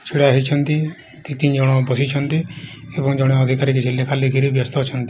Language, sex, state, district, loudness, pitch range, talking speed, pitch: Odia, male, Odisha, Khordha, -18 LUFS, 130-145 Hz, 155 wpm, 135 Hz